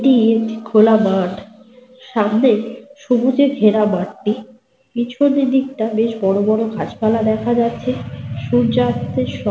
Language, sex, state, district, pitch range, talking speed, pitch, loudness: Bengali, female, Jharkhand, Sahebganj, 195-250 Hz, 95 wpm, 220 Hz, -17 LUFS